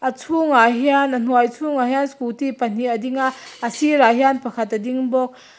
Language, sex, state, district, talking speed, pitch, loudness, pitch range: Mizo, female, Mizoram, Aizawl, 225 wpm, 255 Hz, -19 LUFS, 240-270 Hz